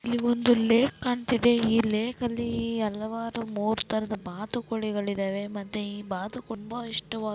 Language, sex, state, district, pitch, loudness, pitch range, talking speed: Kannada, female, Karnataka, Belgaum, 225 Hz, -28 LUFS, 210-235 Hz, 140 wpm